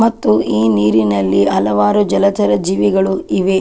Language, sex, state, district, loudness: Kannada, female, Karnataka, Chamarajanagar, -14 LUFS